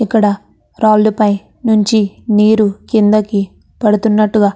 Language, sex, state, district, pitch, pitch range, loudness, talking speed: Telugu, female, Andhra Pradesh, Chittoor, 215 Hz, 205-220 Hz, -13 LUFS, 90 wpm